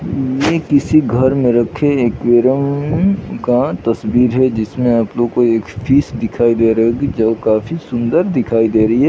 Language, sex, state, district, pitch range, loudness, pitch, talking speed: Hindi, male, Chhattisgarh, Bilaspur, 115-140 Hz, -14 LUFS, 120 Hz, 150 wpm